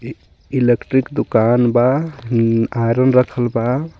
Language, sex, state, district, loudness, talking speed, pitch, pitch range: Bhojpuri, male, Jharkhand, Palamu, -16 LUFS, 105 wpm, 120 Hz, 115-130 Hz